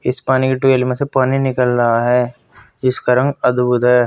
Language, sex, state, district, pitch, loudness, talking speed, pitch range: Hindi, male, Uttar Pradesh, Saharanpur, 125 Hz, -16 LUFS, 205 wpm, 125-130 Hz